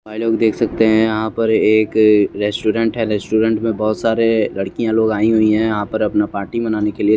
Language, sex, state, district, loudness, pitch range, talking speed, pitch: Hindi, male, Chandigarh, Chandigarh, -16 LUFS, 105-110 Hz, 225 wpm, 110 Hz